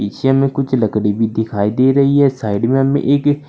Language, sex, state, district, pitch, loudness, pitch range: Hindi, male, Uttar Pradesh, Saharanpur, 130 Hz, -15 LUFS, 110-140 Hz